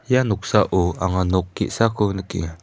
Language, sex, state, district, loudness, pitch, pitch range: Garo, male, Meghalaya, West Garo Hills, -21 LUFS, 95 Hz, 90-110 Hz